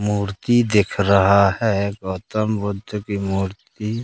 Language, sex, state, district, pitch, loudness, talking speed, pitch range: Hindi, male, Madhya Pradesh, Katni, 100 Hz, -20 LUFS, 120 wpm, 100-110 Hz